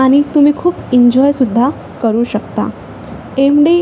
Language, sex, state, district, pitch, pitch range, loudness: Marathi, female, Maharashtra, Chandrapur, 270 Hz, 245-290 Hz, -13 LUFS